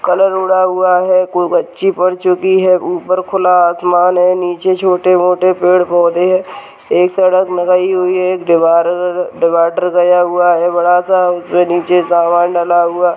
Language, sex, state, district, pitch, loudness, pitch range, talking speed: Hindi, female, Uttarakhand, Tehri Garhwal, 180 Hz, -12 LUFS, 175-185 Hz, 165 wpm